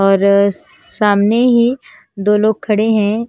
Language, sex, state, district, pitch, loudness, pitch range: Hindi, female, Himachal Pradesh, Shimla, 210 Hz, -13 LUFS, 200-230 Hz